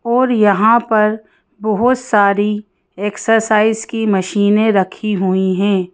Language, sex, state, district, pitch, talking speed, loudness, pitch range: Hindi, female, Madhya Pradesh, Bhopal, 210 Hz, 110 wpm, -15 LUFS, 200-225 Hz